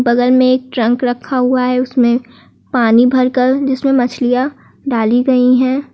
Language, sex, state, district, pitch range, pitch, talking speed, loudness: Hindi, female, Uttar Pradesh, Lucknow, 245-260 Hz, 250 Hz, 160 wpm, -13 LUFS